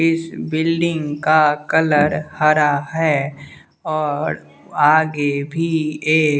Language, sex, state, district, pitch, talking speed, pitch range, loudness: Hindi, male, Bihar, West Champaran, 155 Hz, 95 wpm, 145-160 Hz, -18 LUFS